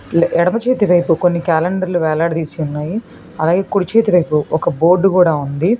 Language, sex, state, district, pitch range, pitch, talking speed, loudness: Telugu, female, Telangana, Hyderabad, 165-185 Hz, 175 Hz, 155 wpm, -15 LUFS